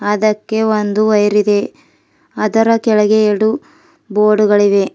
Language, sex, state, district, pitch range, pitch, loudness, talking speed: Kannada, female, Karnataka, Bidar, 210-220 Hz, 215 Hz, -13 LUFS, 85 wpm